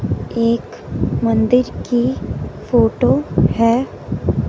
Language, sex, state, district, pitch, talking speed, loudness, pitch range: Hindi, female, Punjab, Fazilka, 230 Hz, 65 wpm, -17 LUFS, 150-240 Hz